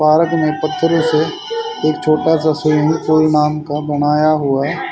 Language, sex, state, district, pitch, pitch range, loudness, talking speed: Hindi, male, Haryana, Charkhi Dadri, 155 Hz, 150-160 Hz, -15 LUFS, 160 wpm